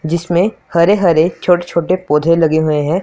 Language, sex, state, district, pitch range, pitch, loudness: Hindi, male, Punjab, Pathankot, 160-180 Hz, 170 Hz, -13 LUFS